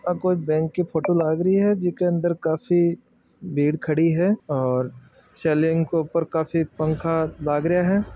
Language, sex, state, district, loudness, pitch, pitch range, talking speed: Marwari, male, Rajasthan, Nagaur, -22 LUFS, 165 Hz, 155-180 Hz, 160 wpm